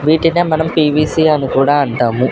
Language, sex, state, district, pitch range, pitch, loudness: Telugu, male, Andhra Pradesh, Sri Satya Sai, 135-160 Hz, 150 Hz, -13 LUFS